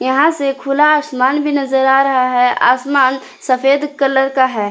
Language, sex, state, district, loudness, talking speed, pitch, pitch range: Hindi, female, Jharkhand, Palamu, -14 LUFS, 180 wpm, 270 Hz, 260-280 Hz